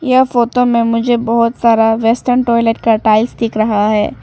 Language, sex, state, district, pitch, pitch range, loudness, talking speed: Hindi, female, Arunachal Pradesh, Papum Pare, 230 Hz, 225-240 Hz, -13 LUFS, 185 wpm